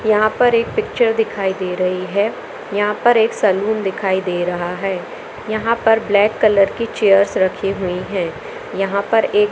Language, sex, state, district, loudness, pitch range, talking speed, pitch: Hindi, female, Madhya Pradesh, Katni, -17 LUFS, 190-225 Hz, 185 wpm, 205 Hz